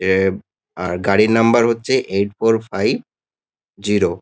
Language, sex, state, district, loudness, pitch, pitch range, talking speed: Bengali, male, West Bengal, Kolkata, -17 LUFS, 100 Hz, 95-115 Hz, 140 wpm